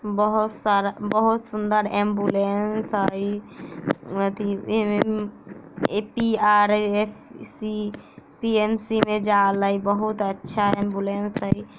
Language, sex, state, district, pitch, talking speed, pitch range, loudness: Bajjika, female, Bihar, Vaishali, 210 Hz, 70 wpm, 200-215 Hz, -23 LUFS